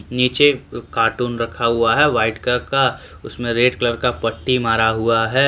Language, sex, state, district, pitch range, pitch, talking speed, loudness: Hindi, male, Jharkhand, Deoghar, 115-125 Hz, 120 Hz, 175 wpm, -18 LUFS